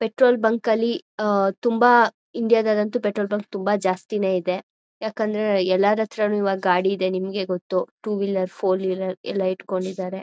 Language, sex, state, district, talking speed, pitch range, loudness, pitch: Kannada, female, Karnataka, Mysore, 160 wpm, 185-220 Hz, -22 LUFS, 200 Hz